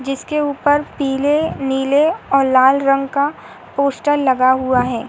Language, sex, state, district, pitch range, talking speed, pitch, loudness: Hindi, female, Uttar Pradesh, Hamirpur, 265-290 Hz, 140 wpm, 275 Hz, -16 LUFS